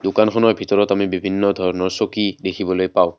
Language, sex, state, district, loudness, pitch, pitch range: Assamese, male, Assam, Kamrup Metropolitan, -18 LUFS, 95 Hz, 95-100 Hz